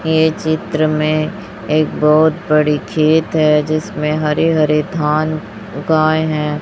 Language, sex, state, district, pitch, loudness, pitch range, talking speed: Hindi, female, Chhattisgarh, Raipur, 155 Hz, -15 LUFS, 150-160 Hz, 125 wpm